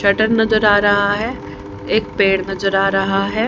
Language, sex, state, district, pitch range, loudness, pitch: Hindi, female, Haryana, Charkhi Dadri, 195-220 Hz, -16 LUFS, 200 Hz